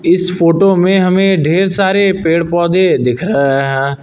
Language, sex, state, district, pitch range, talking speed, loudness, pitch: Hindi, male, Uttar Pradesh, Lucknow, 160-190 Hz, 165 wpm, -12 LUFS, 180 Hz